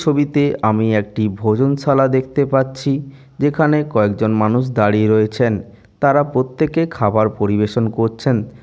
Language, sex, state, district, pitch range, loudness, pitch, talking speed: Bengali, male, West Bengal, Jalpaiguri, 110-140 Hz, -17 LUFS, 120 Hz, 110 wpm